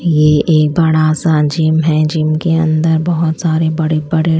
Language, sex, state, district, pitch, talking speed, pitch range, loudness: Hindi, female, Chandigarh, Chandigarh, 160 Hz, 175 wpm, 155-160 Hz, -13 LUFS